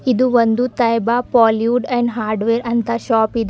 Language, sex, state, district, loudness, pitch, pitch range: Kannada, female, Karnataka, Bidar, -16 LUFS, 235 Hz, 225-245 Hz